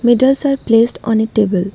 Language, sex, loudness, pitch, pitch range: English, female, -14 LUFS, 230 Hz, 220-255 Hz